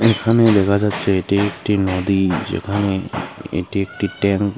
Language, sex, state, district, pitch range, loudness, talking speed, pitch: Bengali, male, Tripura, Unakoti, 95-105 Hz, -18 LUFS, 145 wpm, 100 Hz